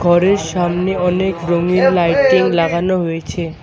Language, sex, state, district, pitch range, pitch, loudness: Bengali, male, West Bengal, Alipurduar, 170-185 Hz, 180 Hz, -15 LUFS